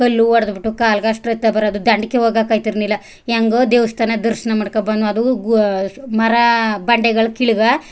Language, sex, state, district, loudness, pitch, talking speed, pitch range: Kannada, female, Karnataka, Chamarajanagar, -16 LUFS, 225 Hz, 145 wpm, 215-230 Hz